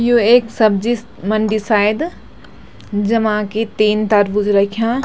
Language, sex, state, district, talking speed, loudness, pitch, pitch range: Garhwali, female, Uttarakhand, Tehri Garhwal, 120 wpm, -16 LUFS, 215 Hz, 210-230 Hz